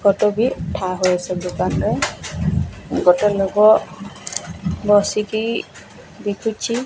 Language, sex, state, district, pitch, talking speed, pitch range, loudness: Odia, male, Odisha, Nuapada, 205 Hz, 45 wpm, 190-215 Hz, -19 LUFS